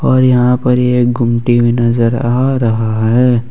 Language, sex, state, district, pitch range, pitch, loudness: Hindi, male, Jharkhand, Ranchi, 115-125 Hz, 120 Hz, -12 LUFS